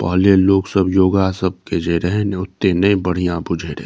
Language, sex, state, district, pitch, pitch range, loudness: Maithili, male, Bihar, Saharsa, 95 Hz, 85-95 Hz, -17 LUFS